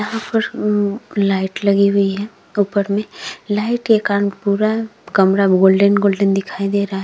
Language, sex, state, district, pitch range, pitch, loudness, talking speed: Hindi, female, Uttar Pradesh, Jyotiba Phule Nagar, 195-210 Hz, 200 Hz, -17 LUFS, 155 wpm